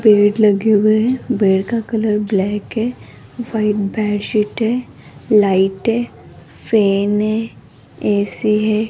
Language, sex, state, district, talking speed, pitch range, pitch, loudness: Hindi, female, Rajasthan, Jaipur, 130 wpm, 205-225 Hz, 215 Hz, -16 LUFS